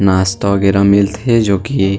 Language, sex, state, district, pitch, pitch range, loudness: Chhattisgarhi, male, Chhattisgarh, Sarguja, 100 Hz, 100-105 Hz, -13 LUFS